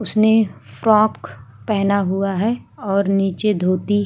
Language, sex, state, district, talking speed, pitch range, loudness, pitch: Hindi, female, Uttar Pradesh, Hamirpur, 120 wpm, 190-215 Hz, -18 LUFS, 200 Hz